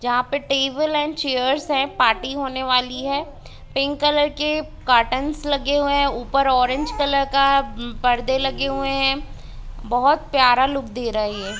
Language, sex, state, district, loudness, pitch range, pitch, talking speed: Hindi, female, Jharkhand, Jamtara, -20 LUFS, 255-285 Hz, 275 Hz, 150 wpm